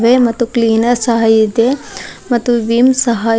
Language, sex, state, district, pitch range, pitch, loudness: Kannada, female, Karnataka, Bidar, 230-245 Hz, 235 Hz, -13 LUFS